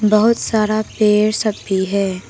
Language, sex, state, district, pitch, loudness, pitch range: Hindi, female, Arunachal Pradesh, Papum Pare, 215 Hz, -16 LUFS, 200-215 Hz